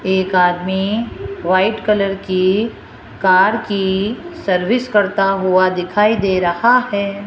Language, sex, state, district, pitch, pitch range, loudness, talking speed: Hindi, female, Rajasthan, Jaipur, 195 Hz, 185-210 Hz, -16 LUFS, 115 wpm